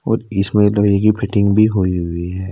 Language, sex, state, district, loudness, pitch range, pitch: Hindi, male, Uttar Pradesh, Saharanpur, -16 LUFS, 95-105 Hz, 100 Hz